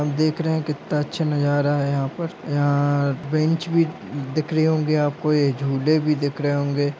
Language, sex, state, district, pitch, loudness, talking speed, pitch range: Hindi, male, Chhattisgarh, Bilaspur, 145 Hz, -22 LUFS, 180 wpm, 145-155 Hz